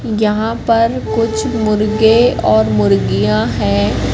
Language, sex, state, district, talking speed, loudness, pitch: Hindi, female, Madhya Pradesh, Katni, 100 wpm, -14 LUFS, 210 Hz